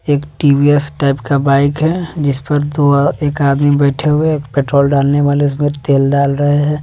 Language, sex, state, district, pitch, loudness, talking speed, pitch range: Hindi, male, Bihar, West Champaran, 145 Hz, -13 LUFS, 200 wpm, 140-145 Hz